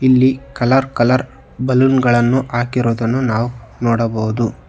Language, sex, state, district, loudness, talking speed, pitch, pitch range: Kannada, male, Karnataka, Bangalore, -16 LUFS, 100 wpm, 125 Hz, 120-130 Hz